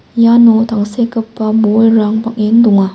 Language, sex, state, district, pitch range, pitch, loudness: Garo, female, Meghalaya, West Garo Hills, 215-230 Hz, 225 Hz, -11 LUFS